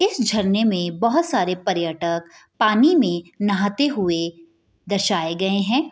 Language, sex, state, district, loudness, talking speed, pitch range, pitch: Hindi, female, Bihar, Bhagalpur, -20 LUFS, 130 wpm, 170-235 Hz, 200 Hz